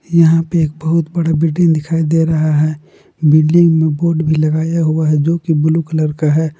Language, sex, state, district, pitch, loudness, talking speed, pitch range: Hindi, male, Jharkhand, Palamu, 160 Hz, -14 LUFS, 210 wpm, 155-165 Hz